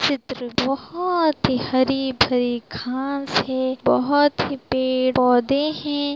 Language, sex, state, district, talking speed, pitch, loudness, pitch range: Hindi, female, Bihar, Sitamarhi, 105 wpm, 265 Hz, -21 LUFS, 255-285 Hz